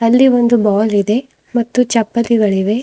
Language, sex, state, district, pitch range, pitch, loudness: Kannada, female, Karnataka, Bidar, 210-240 Hz, 230 Hz, -14 LUFS